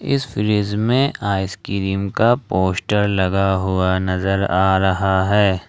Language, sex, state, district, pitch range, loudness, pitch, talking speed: Hindi, male, Jharkhand, Ranchi, 95-105 Hz, -18 LUFS, 95 Hz, 125 wpm